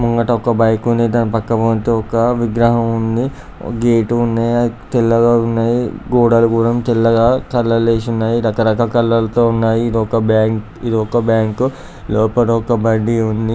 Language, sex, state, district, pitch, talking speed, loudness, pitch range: Telugu, male, Andhra Pradesh, Guntur, 115 Hz, 145 wpm, -15 LUFS, 115-120 Hz